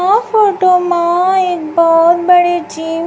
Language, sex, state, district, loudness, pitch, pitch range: Hindi, female, Chhattisgarh, Raipur, -11 LUFS, 350 Hz, 335-370 Hz